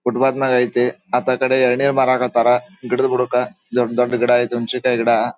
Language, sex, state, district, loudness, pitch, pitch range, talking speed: Kannada, male, Karnataka, Dharwad, -18 LUFS, 125 Hz, 120-130 Hz, 200 wpm